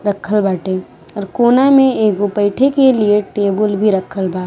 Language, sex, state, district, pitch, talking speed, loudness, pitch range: Bhojpuri, female, Bihar, East Champaran, 205 Hz, 175 wpm, -14 LUFS, 195-230 Hz